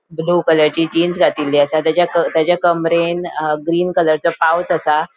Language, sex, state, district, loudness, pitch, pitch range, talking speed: Konkani, female, Goa, North and South Goa, -15 LUFS, 165 Hz, 155-175 Hz, 140 wpm